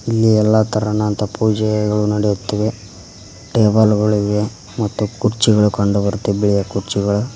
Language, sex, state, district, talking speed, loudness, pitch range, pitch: Kannada, male, Karnataka, Koppal, 115 wpm, -17 LUFS, 100-110 Hz, 105 Hz